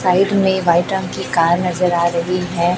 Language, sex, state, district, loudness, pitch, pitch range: Hindi, female, Chhattisgarh, Raipur, -16 LUFS, 180 Hz, 170-185 Hz